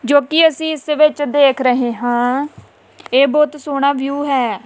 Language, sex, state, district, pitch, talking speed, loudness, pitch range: Punjabi, female, Punjab, Kapurthala, 280 Hz, 180 wpm, -15 LUFS, 255-300 Hz